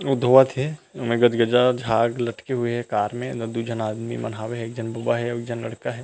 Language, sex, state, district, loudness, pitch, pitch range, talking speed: Chhattisgarhi, male, Chhattisgarh, Rajnandgaon, -23 LUFS, 120 Hz, 115-125 Hz, 240 wpm